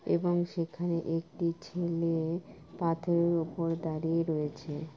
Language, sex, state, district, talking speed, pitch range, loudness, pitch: Bengali, female, West Bengal, Kolkata, 95 wpm, 160-170 Hz, -32 LUFS, 165 Hz